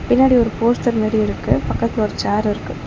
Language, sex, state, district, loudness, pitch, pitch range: Tamil, female, Tamil Nadu, Chennai, -18 LUFS, 225 Hz, 215-240 Hz